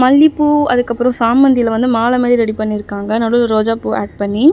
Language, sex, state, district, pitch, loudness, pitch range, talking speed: Tamil, female, Tamil Nadu, Chennai, 235 Hz, -13 LUFS, 220-250 Hz, 185 wpm